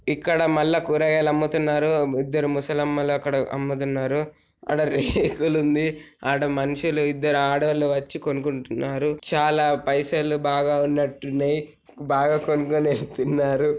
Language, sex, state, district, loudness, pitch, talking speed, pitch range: Telugu, male, Telangana, Nalgonda, -23 LUFS, 145 Hz, 115 wpm, 140-150 Hz